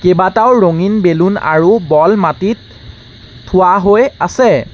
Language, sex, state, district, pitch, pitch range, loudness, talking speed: Assamese, male, Assam, Sonitpur, 180 Hz, 155-205 Hz, -11 LUFS, 115 wpm